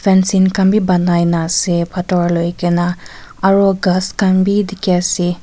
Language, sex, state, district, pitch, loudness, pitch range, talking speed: Nagamese, female, Nagaland, Kohima, 180 Hz, -14 LUFS, 175-195 Hz, 175 wpm